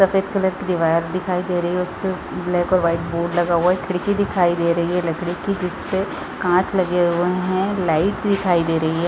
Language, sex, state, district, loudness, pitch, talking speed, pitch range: Hindi, female, Chhattisgarh, Raigarh, -20 LUFS, 180 Hz, 225 wpm, 170-190 Hz